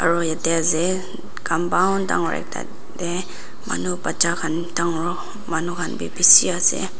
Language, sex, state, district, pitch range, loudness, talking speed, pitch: Nagamese, female, Nagaland, Dimapur, 165-180 Hz, -20 LUFS, 145 wpm, 170 Hz